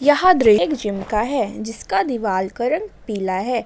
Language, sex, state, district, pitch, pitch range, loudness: Hindi, female, Jharkhand, Ranchi, 220 Hz, 200-265 Hz, -19 LUFS